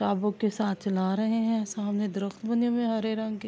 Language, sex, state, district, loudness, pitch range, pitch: Urdu, female, Andhra Pradesh, Anantapur, -28 LUFS, 200-220 Hz, 215 Hz